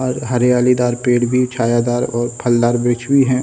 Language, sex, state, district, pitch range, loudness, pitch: Hindi, male, Bihar, Samastipur, 120-125 Hz, -16 LUFS, 125 Hz